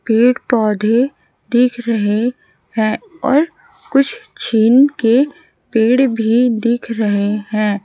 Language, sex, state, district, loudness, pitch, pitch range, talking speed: Hindi, female, Chhattisgarh, Raipur, -15 LUFS, 235 Hz, 220-250 Hz, 100 wpm